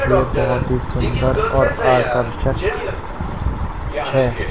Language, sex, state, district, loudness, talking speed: Hindi, male, Madhya Pradesh, Katni, -19 LUFS, 95 wpm